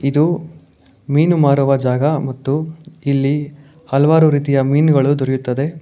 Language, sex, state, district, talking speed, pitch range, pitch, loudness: Kannada, male, Karnataka, Bangalore, 105 wpm, 135-155 Hz, 140 Hz, -16 LUFS